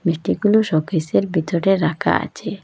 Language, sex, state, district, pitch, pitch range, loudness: Bengali, female, Assam, Hailakandi, 175 Hz, 165-195 Hz, -19 LUFS